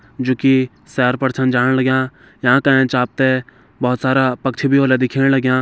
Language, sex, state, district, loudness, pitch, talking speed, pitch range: Garhwali, male, Uttarakhand, Tehri Garhwal, -16 LUFS, 130 Hz, 190 wpm, 125-130 Hz